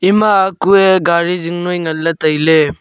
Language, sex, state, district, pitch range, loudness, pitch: Wancho, male, Arunachal Pradesh, Longding, 160-190 Hz, -13 LUFS, 175 Hz